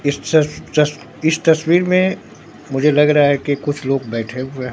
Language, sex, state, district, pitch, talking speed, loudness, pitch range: Hindi, male, Bihar, Katihar, 150 Hz, 205 wpm, -17 LUFS, 135-160 Hz